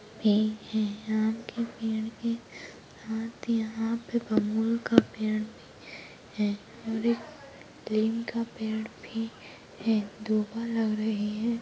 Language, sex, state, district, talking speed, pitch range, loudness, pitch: Hindi, female, Uttarakhand, Uttarkashi, 135 wpm, 215-230 Hz, -30 LUFS, 220 Hz